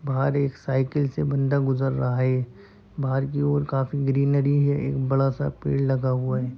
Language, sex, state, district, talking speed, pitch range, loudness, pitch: Hindi, male, Bihar, Saran, 190 wpm, 130-140 Hz, -24 LUFS, 135 Hz